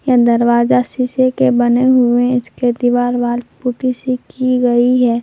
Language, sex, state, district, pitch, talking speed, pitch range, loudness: Hindi, female, Jharkhand, Palamu, 245 Hz, 160 wpm, 240-255 Hz, -14 LUFS